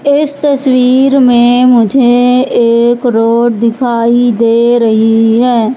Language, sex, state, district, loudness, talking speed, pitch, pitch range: Hindi, female, Madhya Pradesh, Katni, -8 LUFS, 105 wpm, 240 Hz, 230-255 Hz